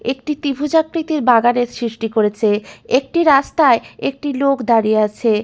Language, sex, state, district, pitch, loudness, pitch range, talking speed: Bengali, female, West Bengal, Malda, 255 Hz, -16 LUFS, 225-290 Hz, 130 wpm